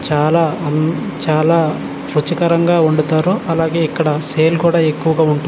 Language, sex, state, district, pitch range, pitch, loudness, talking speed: Telugu, male, Telangana, Nalgonda, 155-165 Hz, 160 Hz, -15 LUFS, 120 wpm